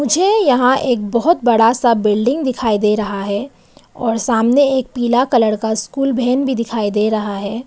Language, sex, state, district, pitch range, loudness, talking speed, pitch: Hindi, female, Arunachal Pradesh, Papum Pare, 215-260 Hz, -15 LUFS, 190 wpm, 235 Hz